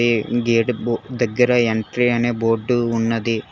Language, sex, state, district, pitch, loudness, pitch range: Telugu, male, Telangana, Hyderabad, 120 Hz, -19 LUFS, 115-120 Hz